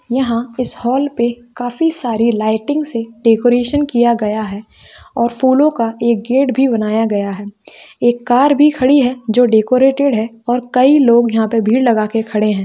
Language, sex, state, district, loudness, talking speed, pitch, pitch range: Hindi, female, Chhattisgarh, Bilaspur, -14 LUFS, 185 wpm, 240 Hz, 225-260 Hz